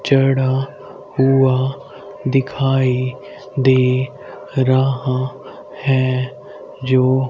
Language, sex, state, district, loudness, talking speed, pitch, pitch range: Hindi, male, Haryana, Rohtak, -17 LUFS, 55 wpm, 130 Hz, 130-135 Hz